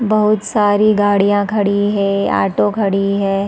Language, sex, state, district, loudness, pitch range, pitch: Hindi, female, Chhattisgarh, Raigarh, -15 LUFS, 200-210 Hz, 205 Hz